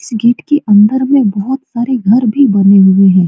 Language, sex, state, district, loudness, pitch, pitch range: Hindi, female, Bihar, Supaul, -10 LUFS, 230 Hz, 200-260 Hz